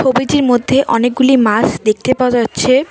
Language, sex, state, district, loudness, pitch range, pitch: Bengali, female, West Bengal, Cooch Behar, -13 LUFS, 240-265 Hz, 255 Hz